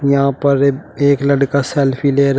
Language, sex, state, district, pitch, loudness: Hindi, male, Uttar Pradesh, Shamli, 140 Hz, -15 LUFS